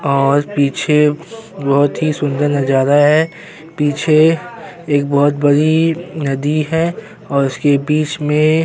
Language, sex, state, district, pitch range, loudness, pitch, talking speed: Hindi, male, Uttar Pradesh, Jyotiba Phule Nagar, 145-160 Hz, -15 LUFS, 150 Hz, 125 wpm